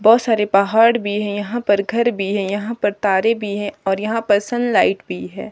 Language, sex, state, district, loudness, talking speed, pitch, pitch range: Hindi, female, Himachal Pradesh, Shimla, -18 LUFS, 230 wpm, 205 Hz, 200-225 Hz